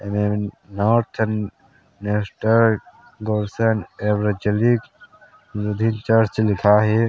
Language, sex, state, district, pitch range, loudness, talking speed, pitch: Chhattisgarhi, male, Chhattisgarh, Sarguja, 105-115 Hz, -20 LUFS, 85 wpm, 105 Hz